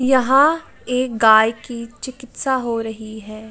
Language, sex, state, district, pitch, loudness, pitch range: Hindi, female, Uttar Pradesh, Jalaun, 235 Hz, -17 LUFS, 220-260 Hz